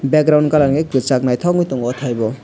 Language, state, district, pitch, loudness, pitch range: Kokborok, Tripura, West Tripura, 135 Hz, -16 LUFS, 125-155 Hz